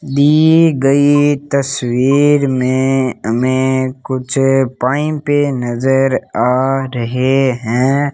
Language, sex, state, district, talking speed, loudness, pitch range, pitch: Hindi, male, Rajasthan, Bikaner, 80 wpm, -14 LUFS, 130-145 Hz, 135 Hz